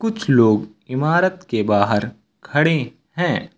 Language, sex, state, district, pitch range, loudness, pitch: Hindi, male, Uttar Pradesh, Lucknow, 105-165 Hz, -19 LUFS, 130 Hz